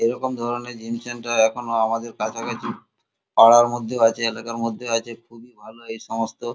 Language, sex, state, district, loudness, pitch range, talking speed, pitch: Bengali, male, West Bengal, Kolkata, -21 LUFS, 115-120 Hz, 155 wpm, 115 Hz